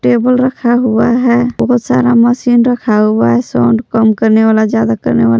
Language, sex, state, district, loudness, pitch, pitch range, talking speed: Hindi, female, Jharkhand, Palamu, -11 LUFS, 225 Hz, 210-245 Hz, 190 wpm